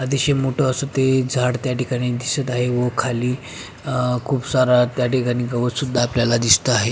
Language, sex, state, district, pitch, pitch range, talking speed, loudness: Marathi, male, Maharashtra, Pune, 125 Hz, 125-130 Hz, 175 wpm, -19 LUFS